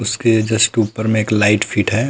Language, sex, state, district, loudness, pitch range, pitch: Chhattisgarhi, male, Chhattisgarh, Rajnandgaon, -15 LUFS, 105-115 Hz, 110 Hz